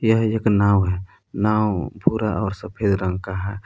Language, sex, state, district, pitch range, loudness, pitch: Hindi, male, Jharkhand, Palamu, 95-110 Hz, -21 LUFS, 100 Hz